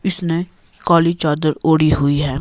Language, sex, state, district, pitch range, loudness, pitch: Hindi, male, Himachal Pradesh, Shimla, 150-170 Hz, -16 LUFS, 160 Hz